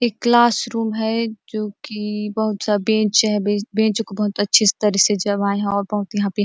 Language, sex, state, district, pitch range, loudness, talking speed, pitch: Hindi, female, Chhattisgarh, Bastar, 205-220 Hz, -19 LUFS, 215 wpm, 210 Hz